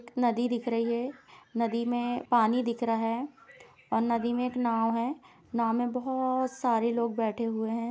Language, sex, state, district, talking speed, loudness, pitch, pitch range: Hindi, female, Uttar Pradesh, Jalaun, 180 wpm, -29 LUFS, 235 Hz, 230-250 Hz